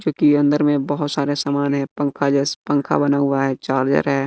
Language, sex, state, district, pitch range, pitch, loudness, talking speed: Hindi, male, Bihar, West Champaran, 140-145 Hz, 140 Hz, -19 LUFS, 210 wpm